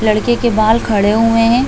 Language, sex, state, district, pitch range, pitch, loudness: Hindi, female, Uttar Pradesh, Hamirpur, 215-235 Hz, 225 Hz, -13 LUFS